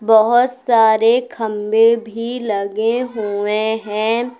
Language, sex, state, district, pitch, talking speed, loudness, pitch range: Hindi, female, Uttar Pradesh, Lucknow, 225 Hz, 95 wpm, -16 LUFS, 215-235 Hz